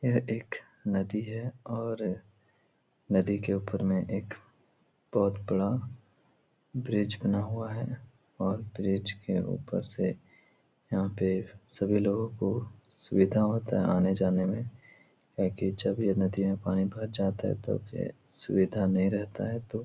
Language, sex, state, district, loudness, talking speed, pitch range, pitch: Hindi, male, Bihar, Supaul, -31 LUFS, 150 wpm, 95-115 Hz, 100 Hz